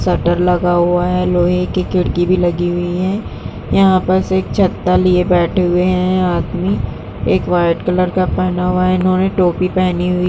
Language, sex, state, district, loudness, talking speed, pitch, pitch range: Hindi, female, Uttar Pradesh, Jyotiba Phule Nagar, -15 LUFS, 190 wpm, 180 Hz, 175-185 Hz